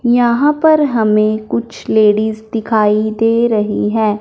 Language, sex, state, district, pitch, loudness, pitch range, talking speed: Hindi, male, Punjab, Fazilka, 220 Hz, -13 LUFS, 215-235 Hz, 130 wpm